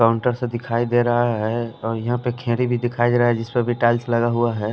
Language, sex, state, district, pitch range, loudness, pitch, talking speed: Hindi, male, Punjab, Pathankot, 115-120 Hz, -21 LUFS, 120 Hz, 280 wpm